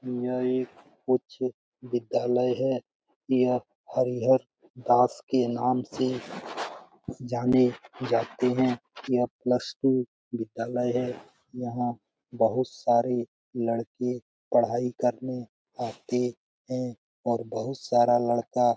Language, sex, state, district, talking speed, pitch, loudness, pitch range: Hindi, male, Bihar, Jamui, 100 wpm, 125 Hz, -28 LUFS, 120-125 Hz